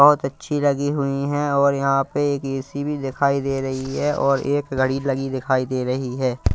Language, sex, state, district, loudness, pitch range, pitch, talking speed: Hindi, male, Punjab, Kapurthala, -21 LUFS, 135-145 Hz, 140 Hz, 210 wpm